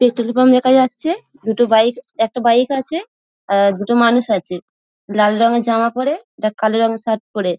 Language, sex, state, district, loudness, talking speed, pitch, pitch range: Bengali, female, West Bengal, Dakshin Dinajpur, -16 LUFS, 180 wpm, 235 Hz, 215-255 Hz